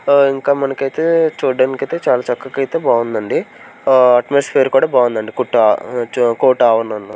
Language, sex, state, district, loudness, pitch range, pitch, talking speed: Telugu, male, Andhra Pradesh, Sri Satya Sai, -15 LUFS, 120-135 Hz, 130 Hz, 125 wpm